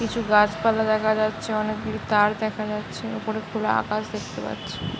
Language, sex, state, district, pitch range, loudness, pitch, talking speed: Bengali, female, West Bengal, Paschim Medinipur, 210-220 Hz, -24 LUFS, 215 Hz, 190 wpm